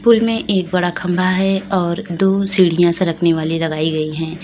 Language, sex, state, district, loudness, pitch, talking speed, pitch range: Hindi, female, Uttar Pradesh, Lalitpur, -16 LUFS, 180 Hz, 190 wpm, 165-195 Hz